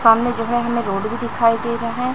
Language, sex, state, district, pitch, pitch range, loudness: Hindi, female, Chhattisgarh, Raipur, 235 Hz, 230-240 Hz, -19 LUFS